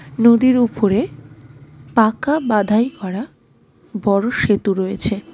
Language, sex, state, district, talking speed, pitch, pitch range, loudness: Bengali, female, West Bengal, Darjeeling, 100 wpm, 210 Hz, 190-230 Hz, -17 LUFS